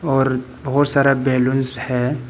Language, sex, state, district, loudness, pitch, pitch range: Hindi, male, Arunachal Pradesh, Papum Pare, -18 LUFS, 135 Hz, 125-140 Hz